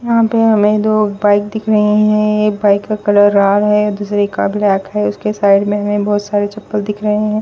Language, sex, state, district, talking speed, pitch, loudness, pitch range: Hindi, female, Bihar, West Champaran, 225 wpm, 210 Hz, -13 LUFS, 205-210 Hz